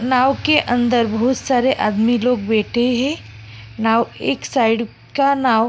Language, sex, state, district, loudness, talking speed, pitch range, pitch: Hindi, female, Goa, North and South Goa, -17 LUFS, 160 wpm, 225-255 Hz, 240 Hz